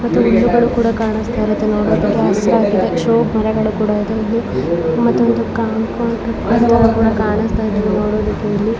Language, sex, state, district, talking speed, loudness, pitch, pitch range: Kannada, female, Karnataka, Bijapur, 135 wpm, -15 LUFS, 220 Hz, 210-230 Hz